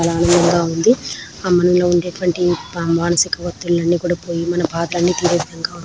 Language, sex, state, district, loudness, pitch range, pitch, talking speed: Telugu, female, Telangana, Nalgonda, -17 LUFS, 170-175 Hz, 175 Hz, 175 wpm